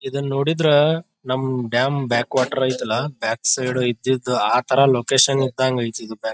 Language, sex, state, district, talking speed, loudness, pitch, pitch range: Kannada, male, Karnataka, Bijapur, 140 wpm, -19 LUFS, 130 Hz, 120-135 Hz